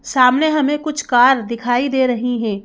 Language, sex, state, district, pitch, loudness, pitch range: Hindi, female, Madhya Pradesh, Bhopal, 250 Hz, -16 LUFS, 240-285 Hz